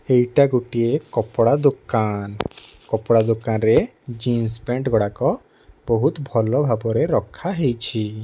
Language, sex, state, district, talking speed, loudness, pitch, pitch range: Odia, male, Odisha, Nuapada, 65 wpm, -20 LUFS, 115 Hz, 110-130 Hz